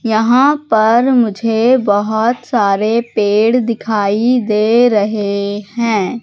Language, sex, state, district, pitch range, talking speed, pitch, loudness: Hindi, female, Madhya Pradesh, Katni, 210-240 Hz, 95 wpm, 220 Hz, -13 LUFS